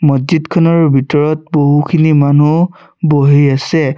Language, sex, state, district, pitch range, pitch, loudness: Assamese, male, Assam, Sonitpur, 145-165 Hz, 150 Hz, -11 LUFS